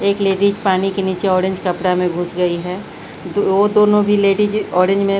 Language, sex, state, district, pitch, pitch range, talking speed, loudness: Hindi, female, Bihar, Patna, 195 Hz, 180-200 Hz, 220 wpm, -16 LUFS